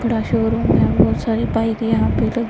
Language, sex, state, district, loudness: Hindi, female, Punjab, Pathankot, -17 LUFS